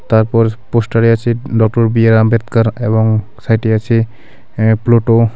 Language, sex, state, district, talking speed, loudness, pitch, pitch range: Bengali, male, West Bengal, Alipurduar, 135 wpm, -13 LUFS, 115 Hz, 110-115 Hz